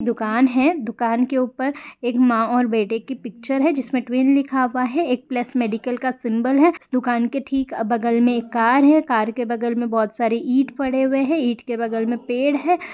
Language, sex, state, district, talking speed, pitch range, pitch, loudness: Hindi, female, Jharkhand, Sahebganj, 225 wpm, 235-270 Hz, 250 Hz, -20 LUFS